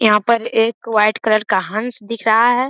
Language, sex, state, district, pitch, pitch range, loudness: Hindi, male, Bihar, Jamui, 225 Hz, 215-235 Hz, -16 LUFS